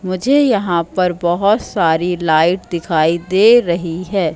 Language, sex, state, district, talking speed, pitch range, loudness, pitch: Hindi, female, Madhya Pradesh, Katni, 140 wpm, 170-195 Hz, -15 LUFS, 180 Hz